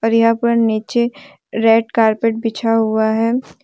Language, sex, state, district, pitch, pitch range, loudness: Hindi, female, Jharkhand, Deoghar, 225 Hz, 225-230 Hz, -16 LUFS